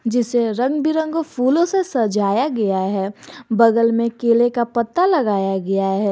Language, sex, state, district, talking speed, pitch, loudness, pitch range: Hindi, male, Jharkhand, Garhwa, 155 wpm, 235 Hz, -18 LUFS, 205-270 Hz